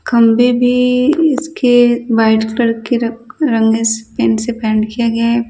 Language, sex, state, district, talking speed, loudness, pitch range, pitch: Hindi, female, Odisha, Nuapada, 155 wpm, -13 LUFS, 225-245 Hz, 235 Hz